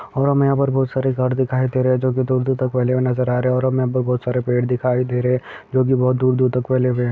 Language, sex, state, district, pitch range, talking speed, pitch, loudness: Hindi, male, Bihar, Gopalganj, 125-130 Hz, 310 wpm, 130 Hz, -19 LUFS